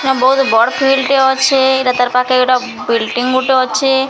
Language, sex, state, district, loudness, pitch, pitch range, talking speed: Odia, female, Odisha, Sambalpur, -12 LUFS, 260 Hz, 250-265 Hz, 145 wpm